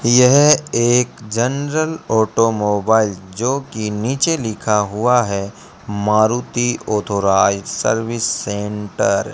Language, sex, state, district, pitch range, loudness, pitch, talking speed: Hindi, male, Rajasthan, Bikaner, 105-120 Hz, -17 LUFS, 110 Hz, 90 wpm